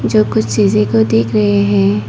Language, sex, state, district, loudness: Hindi, female, Arunachal Pradesh, Papum Pare, -13 LUFS